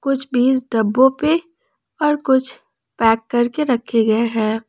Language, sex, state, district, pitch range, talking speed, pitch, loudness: Hindi, female, Jharkhand, Palamu, 230-275 Hz, 140 wpm, 250 Hz, -17 LUFS